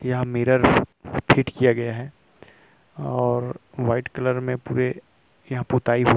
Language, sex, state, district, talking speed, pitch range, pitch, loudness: Hindi, male, Chhattisgarh, Rajnandgaon, 115 wpm, 120-130 Hz, 125 Hz, -22 LUFS